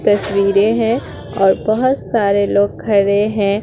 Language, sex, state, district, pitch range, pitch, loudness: Hindi, female, Bihar, Katihar, 200-215 Hz, 205 Hz, -15 LUFS